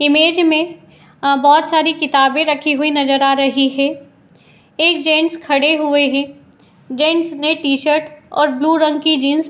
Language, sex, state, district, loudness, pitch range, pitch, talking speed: Hindi, female, Uttar Pradesh, Etah, -14 LUFS, 280-315 Hz, 300 Hz, 175 wpm